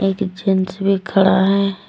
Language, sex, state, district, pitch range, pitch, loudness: Hindi, female, Jharkhand, Deoghar, 190-195 Hz, 195 Hz, -17 LUFS